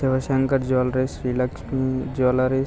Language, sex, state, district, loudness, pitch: Telugu, male, Andhra Pradesh, Visakhapatnam, -23 LUFS, 130 Hz